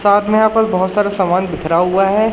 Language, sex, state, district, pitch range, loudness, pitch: Hindi, male, Madhya Pradesh, Umaria, 185-210 Hz, -14 LUFS, 200 Hz